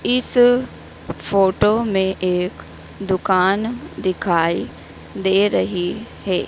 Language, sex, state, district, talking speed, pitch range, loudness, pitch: Hindi, female, Madhya Pradesh, Dhar, 85 wpm, 180-205 Hz, -19 LUFS, 190 Hz